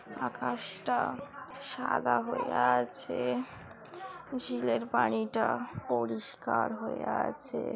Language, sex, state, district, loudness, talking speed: Bengali, female, West Bengal, Jhargram, -32 LUFS, 75 wpm